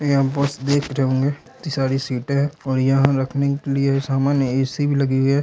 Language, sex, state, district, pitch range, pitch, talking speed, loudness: Hindi, male, Bihar, Darbhanga, 135-140 Hz, 140 Hz, 230 wpm, -20 LUFS